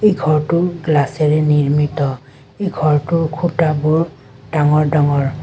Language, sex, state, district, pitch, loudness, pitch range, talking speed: Assamese, female, Assam, Kamrup Metropolitan, 150 Hz, -16 LUFS, 145-165 Hz, 100 wpm